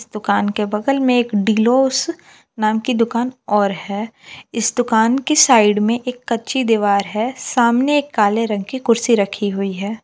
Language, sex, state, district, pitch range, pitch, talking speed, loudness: Hindi, female, Jharkhand, Palamu, 210-250 Hz, 230 Hz, 165 wpm, -17 LUFS